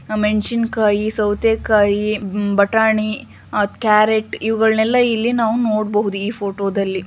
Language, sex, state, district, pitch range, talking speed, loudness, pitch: Kannada, female, Karnataka, Shimoga, 205-220 Hz, 100 wpm, -17 LUFS, 215 Hz